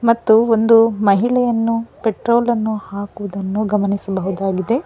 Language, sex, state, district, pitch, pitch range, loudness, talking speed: Kannada, female, Karnataka, Bangalore, 220 Hz, 200-230 Hz, -17 LUFS, 85 wpm